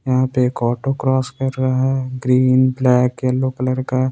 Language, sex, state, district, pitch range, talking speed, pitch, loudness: Hindi, male, Jharkhand, Ranchi, 125-130 Hz, 190 wpm, 130 Hz, -18 LUFS